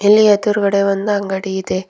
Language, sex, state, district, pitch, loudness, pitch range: Kannada, female, Karnataka, Bidar, 200 Hz, -15 LUFS, 190-210 Hz